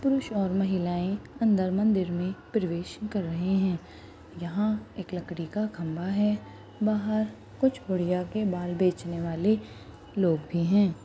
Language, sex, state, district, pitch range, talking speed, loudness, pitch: Hindi, female, Rajasthan, Churu, 175-210 Hz, 140 wpm, -28 LUFS, 190 Hz